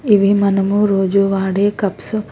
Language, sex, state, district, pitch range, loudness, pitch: Telugu, female, Telangana, Hyderabad, 195-205 Hz, -15 LUFS, 200 Hz